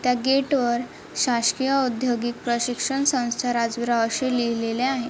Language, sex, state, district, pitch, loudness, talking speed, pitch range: Marathi, female, Maharashtra, Chandrapur, 245 Hz, -23 LUFS, 120 wpm, 235-260 Hz